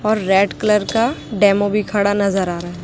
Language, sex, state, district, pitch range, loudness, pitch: Hindi, male, Chhattisgarh, Raipur, 195-210 Hz, -17 LUFS, 205 Hz